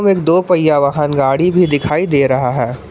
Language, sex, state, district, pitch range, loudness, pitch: Hindi, male, Jharkhand, Garhwa, 135-175 Hz, -13 LUFS, 145 Hz